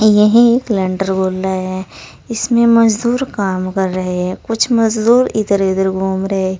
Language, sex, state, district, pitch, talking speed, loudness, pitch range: Hindi, female, Uttar Pradesh, Saharanpur, 195 Hz, 145 wpm, -14 LUFS, 190-230 Hz